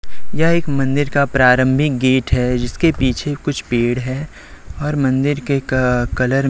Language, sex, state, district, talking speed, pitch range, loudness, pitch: Hindi, male, Chhattisgarh, Raipur, 165 wpm, 125-145 Hz, -17 LUFS, 130 Hz